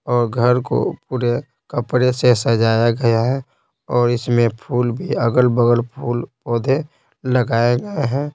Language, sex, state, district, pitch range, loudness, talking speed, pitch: Hindi, male, Bihar, Patna, 120-130 Hz, -18 LUFS, 135 wpm, 120 Hz